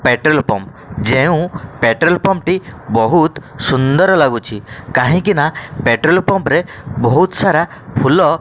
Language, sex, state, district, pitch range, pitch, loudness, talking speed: Odia, male, Odisha, Khordha, 125-175 Hz, 145 Hz, -14 LUFS, 130 wpm